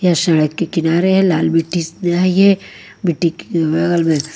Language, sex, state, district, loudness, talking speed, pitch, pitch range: Hindi, female, Haryana, Charkhi Dadri, -15 LUFS, 140 wpm, 170 Hz, 165-180 Hz